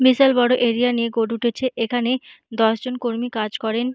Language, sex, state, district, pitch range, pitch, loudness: Bengali, female, West Bengal, Jhargram, 230-250 Hz, 240 Hz, -20 LUFS